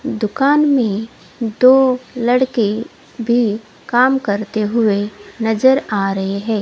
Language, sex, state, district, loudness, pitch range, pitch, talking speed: Hindi, female, Odisha, Khordha, -16 LUFS, 210-255 Hz, 230 Hz, 110 wpm